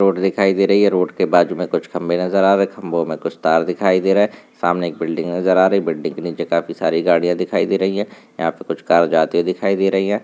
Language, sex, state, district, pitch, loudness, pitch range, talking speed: Hindi, male, Rajasthan, Nagaur, 95 Hz, -17 LUFS, 85-95 Hz, 280 wpm